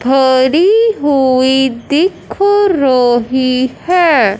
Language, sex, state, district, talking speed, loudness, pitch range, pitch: Hindi, male, Punjab, Fazilka, 70 wpm, -11 LUFS, 255-355 Hz, 265 Hz